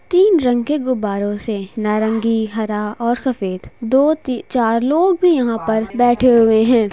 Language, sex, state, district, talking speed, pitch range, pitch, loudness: Hindi, female, Bihar, Jahanabad, 155 wpm, 220-260 Hz, 235 Hz, -16 LUFS